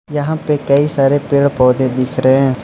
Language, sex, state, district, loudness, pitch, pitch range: Hindi, male, Arunachal Pradesh, Lower Dibang Valley, -14 LUFS, 140 Hz, 130-145 Hz